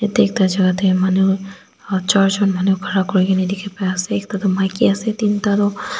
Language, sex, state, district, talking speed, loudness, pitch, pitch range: Nagamese, female, Nagaland, Dimapur, 200 wpm, -17 LUFS, 195 Hz, 190-205 Hz